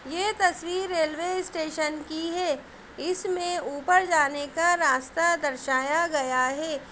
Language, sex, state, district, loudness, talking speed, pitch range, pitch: Hindi, female, Uttar Pradesh, Ghazipur, -26 LUFS, 120 wpm, 290-355 Hz, 320 Hz